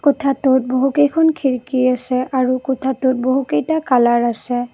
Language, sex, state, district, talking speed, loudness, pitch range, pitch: Assamese, female, Assam, Kamrup Metropolitan, 115 wpm, -17 LUFS, 250-275 Hz, 260 Hz